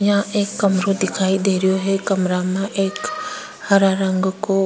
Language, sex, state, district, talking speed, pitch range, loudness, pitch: Rajasthani, female, Rajasthan, Churu, 165 wpm, 190-205 Hz, -19 LUFS, 195 Hz